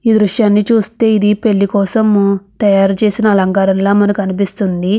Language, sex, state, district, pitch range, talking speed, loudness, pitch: Telugu, female, Andhra Pradesh, Krishna, 195-215 Hz, 130 wpm, -12 LUFS, 205 Hz